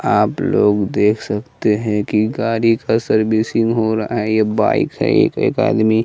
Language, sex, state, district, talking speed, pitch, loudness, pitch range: Hindi, male, Bihar, West Champaran, 180 wpm, 110 Hz, -16 LUFS, 105-115 Hz